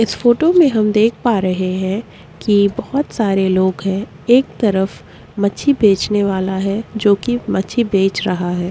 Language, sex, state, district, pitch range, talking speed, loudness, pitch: Hindi, female, Chhattisgarh, Korba, 190-235 Hz, 170 wpm, -16 LUFS, 205 Hz